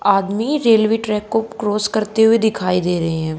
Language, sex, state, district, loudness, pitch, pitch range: Hindi, female, Haryana, Charkhi Dadri, -17 LUFS, 215 Hz, 195-225 Hz